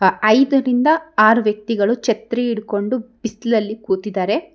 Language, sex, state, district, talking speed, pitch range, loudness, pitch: Kannada, female, Karnataka, Bangalore, 105 wpm, 210-245 Hz, -17 LUFS, 225 Hz